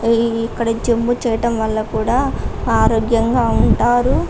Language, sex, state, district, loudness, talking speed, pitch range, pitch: Telugu, female, Andhra Pradesh, Guntur, -17 LUFS, 110 wpm, 225-240 Hz, 230 Hz